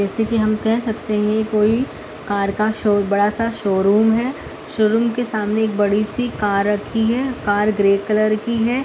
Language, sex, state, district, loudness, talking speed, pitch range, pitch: Hindi, female, Uttar Pradesh, Muzaffarnagar, -18 LUFS, 185 wpm, 205-225 Hz, 215 Hz